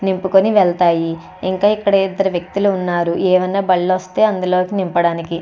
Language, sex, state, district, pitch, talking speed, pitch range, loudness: Telugu, female, Andhra Pradesh, Chittoor, 185 Hz, 135 wpm, 175-195 Hz, -16 LUFS